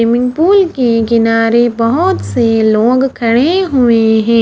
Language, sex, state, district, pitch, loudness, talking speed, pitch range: Hindi, female, Haryana, Charkhi Dadri, 235 Hz, -11 LUFS, 135 wpm, 230-265 Hz